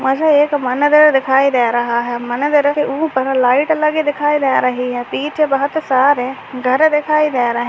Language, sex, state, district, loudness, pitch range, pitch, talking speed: Hindi, female, Bihar, Purnia, -15 LUFS, 250-295 Hz, 275 Hz, 185 wpm